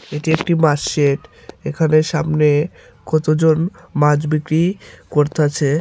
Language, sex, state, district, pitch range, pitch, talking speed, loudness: Bengali, male, Tripura, Unakoti, 150-160 Hz, 155 Hz, 105 wpm, -17 LUFS